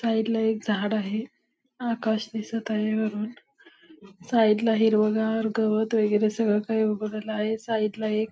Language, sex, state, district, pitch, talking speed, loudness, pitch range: Marathi, female, Maharashtra, Solapur, 220 Hz, 150 wpm, -25 LUFS, 215-225 Hz